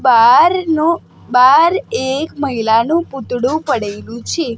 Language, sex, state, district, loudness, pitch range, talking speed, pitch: Gujarati, female, Gujarat, Gandhinagar, -14 LUFS, 240-330 Hz, 90 wpm, 270 Hz